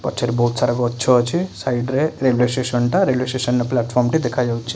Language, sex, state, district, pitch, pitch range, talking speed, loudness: Odia, male, Odisha, Khordha, 125 Hz, 120-130 Hz, 175 wpm, -19 LUFS